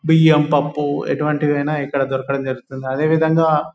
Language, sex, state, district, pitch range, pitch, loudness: Telugu, male, Telangana, Nalgonda, 135-155 Hz, 145 Hz, -18 LUFS